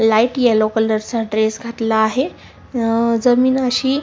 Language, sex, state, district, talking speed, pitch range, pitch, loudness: Marathi, female, Maharashtra, Sindhudurg, 135 wpm, 220-250 Hz, 230 Hz, -17 LUFS